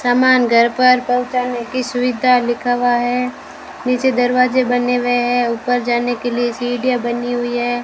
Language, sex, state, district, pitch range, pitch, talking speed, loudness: Hindi, female, Rajasthan, Bikaner, 240-250 Hz, 245 Hz, 170 wpm, -16 LUFS